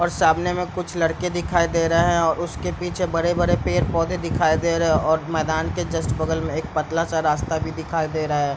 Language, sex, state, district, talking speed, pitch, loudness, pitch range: Hindi, male, Bihar, East Champaran, 225 wpm, 165 Hz, -22 LUFS, 160-175 Hz